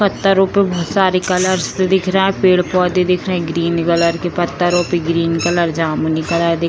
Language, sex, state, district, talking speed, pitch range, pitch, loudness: Hindi, female, Bihar, Purnia, 190 wpm, 170-185 Hz, 175 Hz, -15 LUFS